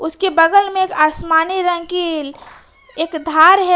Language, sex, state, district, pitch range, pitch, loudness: Hindi, female, Jharkhand, Ranchi, 320-370 Hz, 330 Hz, -15 LUFS